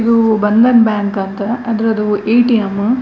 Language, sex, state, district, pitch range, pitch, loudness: Kannada, female, Karnataka, Dakshina Kannada, 205-230 Hz, 220 Hz, -13 LUFS